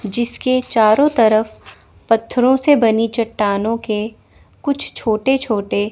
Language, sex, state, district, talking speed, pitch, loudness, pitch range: Hindi, female, Chandigarh, Chandigarh, 110 wpm, 225 Hz, -16 LUFS, 215-255 Hz